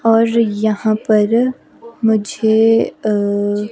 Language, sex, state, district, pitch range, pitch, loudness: Hindi, female, Himachal Pradesh, Shimla, 210-230 Hz, 220 Hz, -15 LUFS